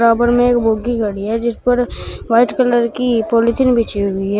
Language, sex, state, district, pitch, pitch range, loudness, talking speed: Hindi, female, Uttar Pradesh, Shamli, 235 Hz, 225-245 Hz, -15 LUFS, 190 wpm